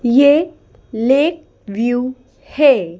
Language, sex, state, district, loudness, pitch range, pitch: Hindi, female, Madhya Pradesh, Bhopal, -15 LUFS, 235-295 Hz, 260 Hz